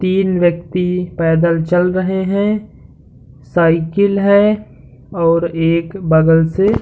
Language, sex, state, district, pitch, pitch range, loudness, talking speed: Hindi, male, Uttar Pradesh, Hamirpur, 170 Hz, 165-190 Hz, -15 LUFS, 115 wpm